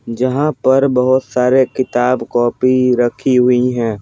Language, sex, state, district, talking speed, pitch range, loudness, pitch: Hindi, male, Bihar, Patna, 150 wpm, 120-130 Hz, -14 LUFS, 125 Hz